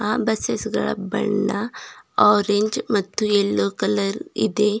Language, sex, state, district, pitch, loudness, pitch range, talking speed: Kannada, female, Karnataka, Bidar, 210 Hz, -21 LUFS, 205-215 Hz, 100 wpm